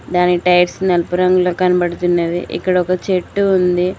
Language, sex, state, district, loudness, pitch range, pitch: Telugu, female, Telangana, Mahabubabad, -15 LUFS, 175-185 Hz, 180 Hz